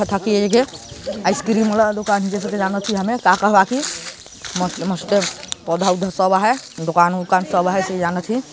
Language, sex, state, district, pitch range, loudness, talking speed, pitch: Hindi, male, Chhattisgarh, Jashpur, 185-210 Hz, -18 LUFS, 170 wpm, 195 Hz